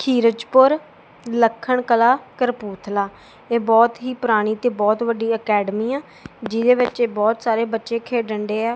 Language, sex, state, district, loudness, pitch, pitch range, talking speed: Punjabi, female, Punjab, Kapurthala, -19 LUFS, 230 Hz, 220-245 Hz, 145 wpm